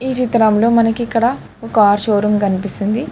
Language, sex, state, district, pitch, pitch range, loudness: Telugu, female, Telangana, Hyderabad, 225 Hz, 205-235 Hz, -15 LUFS